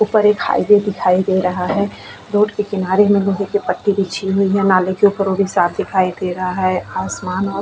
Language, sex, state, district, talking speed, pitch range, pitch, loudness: Hindi, female, Goa, North and South Goa, 245 wpm, 185-205 Hz, 195 Hz, -16 LUFS